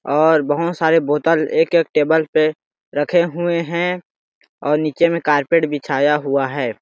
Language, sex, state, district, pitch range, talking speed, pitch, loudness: Hindi, male, Chhattisgarh, Sarguja, 150-170 Hz, 165 wpm, 155 Hz, -17 LUFS